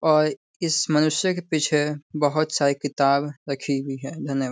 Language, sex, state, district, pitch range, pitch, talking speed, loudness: Hindi, male, Bihar, Sitamarhi, 140-155 Hz, 145 Hz, 160 wpm, -23 LUFS